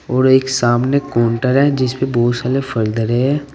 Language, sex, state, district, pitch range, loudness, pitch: Hindi, male, Uttar Pradesh, Saharanpur, 120-135 Hz, -15 LUFS, 130 Hz